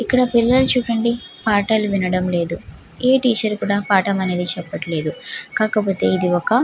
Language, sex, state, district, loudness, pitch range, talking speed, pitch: Telugu, female, Andhra Pradesh, Guntur, -19 LUFS, 185-235 Hz, 125 wpm, 210 Hz